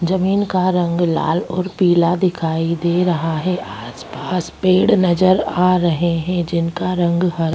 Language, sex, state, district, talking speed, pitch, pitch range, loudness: Hindi, female, Chhattisgarh, Bastar, 160 wpm, 175 Hz, 170-185 Hz, -17 LUFS